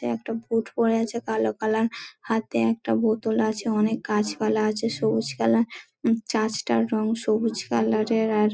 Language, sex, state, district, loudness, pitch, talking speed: Bengali, female, West Bengal, Dakshin Dinajpur, -24 LUFS, 220 Hz, 155 wpm